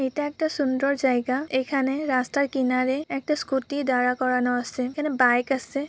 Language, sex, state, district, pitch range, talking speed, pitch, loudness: Bengali, female, West Bengal, Purulia, 255-285 Hz, 165 wpm, 265 Hz, -24 LUFS